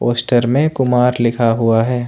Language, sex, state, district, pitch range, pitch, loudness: Hindi, male, Jharkhand, Ranchi, 120-125 Hz, 120 Hz, -15 LUFS